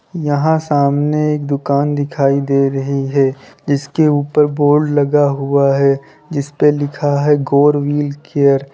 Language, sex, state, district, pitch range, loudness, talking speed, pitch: Hindi, male, Uttar Pradesh, Lalitpur, 140-150 Hz, -15 LUFS, 160 wpm, 145 Hz